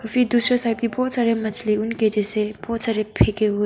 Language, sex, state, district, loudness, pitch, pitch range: Hindi, female, Arunachal Pradesh, Papum Pare, -20 LUFS, 225 Hz, 215-235 Hz